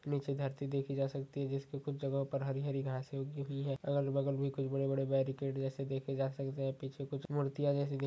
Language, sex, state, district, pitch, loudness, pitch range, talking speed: Hindi, male, Chhattisgarh, Raigarh, 140 Hz, -38 LUFS, 135-140 Hz, 225 wpm